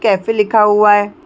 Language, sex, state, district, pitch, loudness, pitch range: Hindi, female, Chhattisgarh, Bilaspur, 210 Hz, -12 LUFS, 205-215 Hz